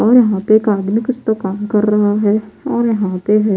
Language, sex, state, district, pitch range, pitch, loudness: Hindi, female, Bihar, Patna, 205-220 Hz, 210 Hz, -15 LUFS